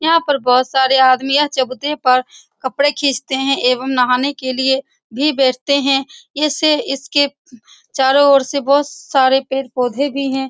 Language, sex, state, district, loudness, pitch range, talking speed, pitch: Hindi, female, Bihar, Saran, -15 LUFS, 260-285 Hz, 155 wpm, 270 Hz